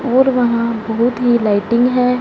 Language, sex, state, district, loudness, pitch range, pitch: Hindi, female, Punjab, Fazilka, -15 LUFS, 230-250 Hz, 240 Hz